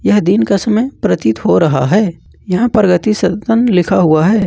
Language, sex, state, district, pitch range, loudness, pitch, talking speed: Hindi, male, Jharkhand, Ranchi, 175-215 Hz, -12 LUFS, 195 Hz, 190 wpm